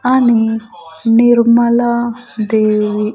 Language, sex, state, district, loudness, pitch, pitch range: Telugu, female, Andhra Pradesh, Sri Satya Sai, -13 LUFS, 230 Hz, 215-240 Hz